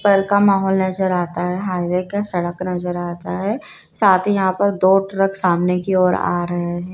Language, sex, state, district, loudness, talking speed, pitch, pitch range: Hindi, female, Madhya Pradesh, Dhar, -18 LUFS, 190 wpm, 185 Hz, 180-195 Hz